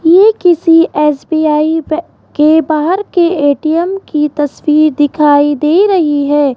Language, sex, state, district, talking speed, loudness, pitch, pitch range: Hindi, female, Rajasthan, Jaipur, 130 wpm, -11 LUFS, 310 Hz, 295-340 Hz